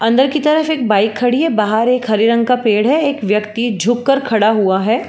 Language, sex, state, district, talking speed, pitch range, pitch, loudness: Hindi, female, Uttar Pradesh, Jalaun, 245 wpm, 215-270 Hz, 235 Hz, -14 LUFS